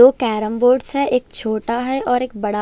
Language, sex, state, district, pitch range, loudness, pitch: Hindi, female, Delhi, New Delhi, 220-255 Hz, -18 LUFS, 245 Hz